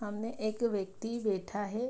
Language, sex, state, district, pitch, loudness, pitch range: Hindi, female, Bihar, Araria, 215 Hz, -35 LUFS, 205-230 Hz